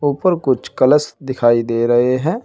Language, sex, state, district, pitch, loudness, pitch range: Hindi, male, Uttar Pradesh, Shamli, 130 Hz, -16 LUFS, 120-150 Hz